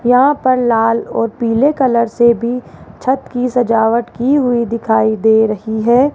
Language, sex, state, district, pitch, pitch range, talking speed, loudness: Hindi, female, Rajasthan, Jaipur, 235 Hz, 225-255 Hz, 165 wpm, -14 LUFS